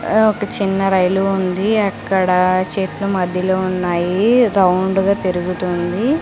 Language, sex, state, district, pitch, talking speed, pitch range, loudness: Telugu, female, Andhra Pradesh, Sri Satya Sai, 190 Hz, 105 wpm, 185-200 Hz, -16 LUFS